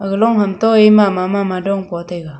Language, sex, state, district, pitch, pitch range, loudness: Wancho, female, Arunachal Pradesh, Longding, 195 Hz, 185-210 Hz, -14 LUFS